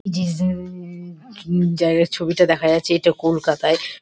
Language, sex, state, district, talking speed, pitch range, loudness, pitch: Bengali, female, West Bengal, Kolkata, 135 wpm, 165-180 Hz, -19 LUFS, 170 Hz